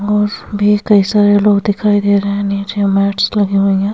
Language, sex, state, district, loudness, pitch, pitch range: Hindi, female, Uttar Pradesh, Hamirpur, -13 LUFS, 205 Hz, 200-205 Hz